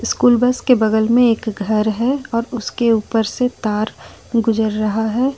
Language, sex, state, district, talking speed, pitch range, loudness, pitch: Hindi, female, Jharkhand, Ranchi, 190 wpm, 220-245 Hz, -17 LUFS, 230 Hz